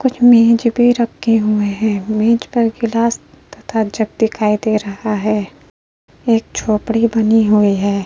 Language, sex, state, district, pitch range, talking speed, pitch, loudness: Hindi, female, Uttar Pradesh, Hamirpur, 210-230 Hz, 150 wpm, 220 Hz, -15 LUFS